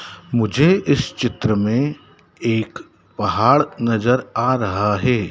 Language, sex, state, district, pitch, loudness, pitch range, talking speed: Hindi, male, Madhya Pradesh, Dhar, 120 Hz, -19 LUFS, 110-140 Hz, 115 wpm